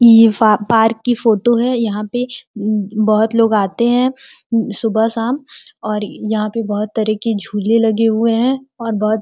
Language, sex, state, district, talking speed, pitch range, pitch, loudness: Hindi, female, Uttar Pradesh, Gorakhpur, 175 wpm, 215-235 Hz, 225 Hz, -16 LUFS